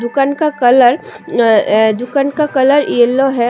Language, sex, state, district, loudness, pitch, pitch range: Hindi, female, Assam, Sonitpur, -12 LUFS, 265 Hz, 240-285 Hz